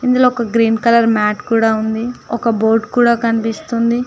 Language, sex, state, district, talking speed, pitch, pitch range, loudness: Telugu, female, Telangana, Mahabubabad, 160 wpm, 230 Hz, 225-235 Hz, -15 LUFS